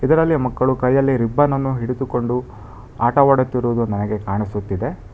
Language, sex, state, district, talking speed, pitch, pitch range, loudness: Kannada, male, Karnataka, Bangalore, 95 wpm, 125 Hz, 110-135 Hz, -19 LUFS